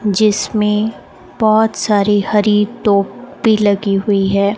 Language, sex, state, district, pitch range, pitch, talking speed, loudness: Hindi, female, Rajasthan, Bikaner, 200-215 Hz, 210 Hz, 105 wpm, -14 LUFS